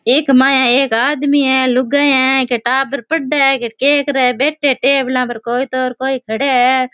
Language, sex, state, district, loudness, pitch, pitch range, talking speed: Rajasthani, female, Rajasthan, Churu, -13 LUFS, 265 Hz, 255-275 Hz, 200 wpm